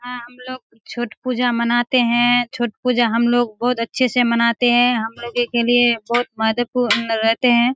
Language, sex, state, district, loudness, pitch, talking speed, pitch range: Hindi, female, Bihar, Kishanganj, -18 LUFS, 240 Hz, 180 wpm, 235-245 Hz